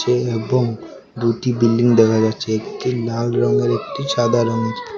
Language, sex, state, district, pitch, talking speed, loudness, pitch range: Bengali, male, Tripura, West Tripura, 115 Hz, 130 wpm, -18 LUFS, 110-125 Hz